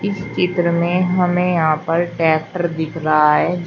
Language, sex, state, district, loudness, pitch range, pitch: Hindi, female, Uttar Pradesh, Shamli, -17 LUFS, 160-180 Hz, 170 Hz